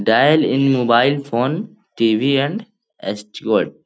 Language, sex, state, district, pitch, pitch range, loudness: Hindi, male, Bihar, Jahanabad, 140 Hz, 120-185 Hz, -17 LUFS